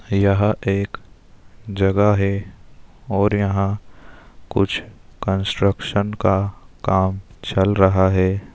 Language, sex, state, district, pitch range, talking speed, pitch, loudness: Hindi, male, Bihar, Darbhanga, 95-100 Hz, 100 wpm, 100 Hz, -20 LUFS